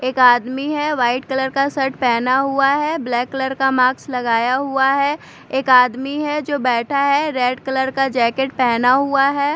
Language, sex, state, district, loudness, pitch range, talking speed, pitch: Hindi, female, Maharashtra, Mumbai Suburban, -17 LUFS, 250-280 Hz, 190 wpm, 265 Hz